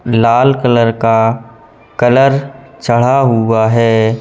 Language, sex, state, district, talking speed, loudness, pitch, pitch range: Hindi, male, Madhya Pradesh, Katni, 100 wpm, -11 LUFS, 115 Hz, 115-130 Hz